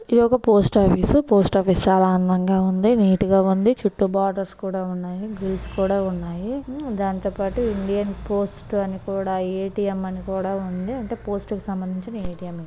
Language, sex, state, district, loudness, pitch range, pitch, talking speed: Telugu, female, Andhra Pradesh, Srikakulam, -22 LUFS, 190-205 Hz, 195 Hz, 175 wpm